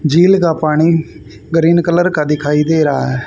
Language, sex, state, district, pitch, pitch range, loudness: Hindi, female, Haryana, Charkhi Dadri, 155 Hz, 150-165 Hz, -13 LUFS